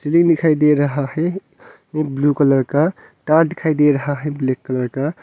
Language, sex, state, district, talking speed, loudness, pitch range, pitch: Hindi, male, Arunachal Pradesh, Longding, 185 wpm, -17 LUFS, 140-160 Hz, 150 Hz